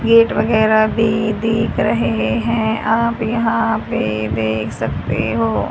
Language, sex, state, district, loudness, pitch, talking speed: Hindi, female, Haryana, Rohtak, -17 LUFS, 215 Hz, 125 wpm